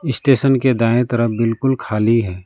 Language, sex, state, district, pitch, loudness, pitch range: Hindi, male, West Bengal, Alipurduar, 120 Hz, -16 LUFS, 115-135 Hz